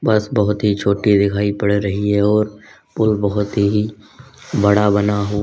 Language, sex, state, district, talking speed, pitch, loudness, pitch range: Hindi, male, Uttar Pradesh, Lalitpur, 165 wpm, 105 Hz, -17 LUFS, 100-105 Hz